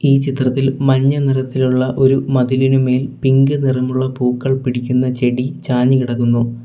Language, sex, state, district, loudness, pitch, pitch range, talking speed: Malayalam, male, Kerala, Kollam, -15 LUFS, 130 Hz, 125-135 Hz, 110 wpm